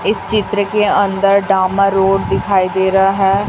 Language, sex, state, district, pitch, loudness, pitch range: Hindi, female, Chhattisgarh, Raipur, 195 Hz, -14 LUFS, 195-200 Hz